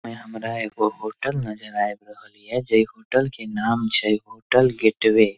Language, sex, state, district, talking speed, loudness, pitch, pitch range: Maithili, male, Bihar, Darbhanga, 180 wpm, -22 LUFS, 110 Hz, 110-115 Hz